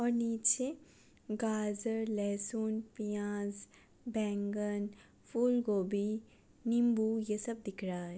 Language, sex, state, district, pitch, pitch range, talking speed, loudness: Hindi, female, Bihar, Gopalganj, 215 Hz, 205-230 Hz, 105 wpm, -35 LUFS